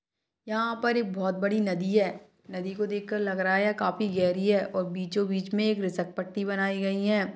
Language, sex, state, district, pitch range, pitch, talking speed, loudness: Hindi, female, Chhattisgarh, Balrampur, 190-210 Hz, 200 Hz, 210 wpm, -28 LUFS